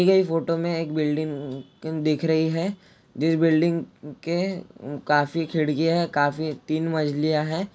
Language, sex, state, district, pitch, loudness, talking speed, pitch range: Hindi, male, Jharkhand, Jamtara, 160 Hz, -24 LUFS, 140 wpm, 150-165 Hz